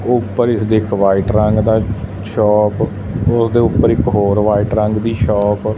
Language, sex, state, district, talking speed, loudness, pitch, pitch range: Punjabi, male, Punjab, Fazilka, 165 wpm, -14 LUFS, 105 Hz, 105-115 Hz